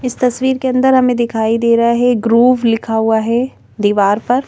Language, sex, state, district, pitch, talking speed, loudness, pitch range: Hindi, female, Madhya Pradesh, Bhopal, 235 Hz, 215 wpm, -13 LUFS, 225-250 Hz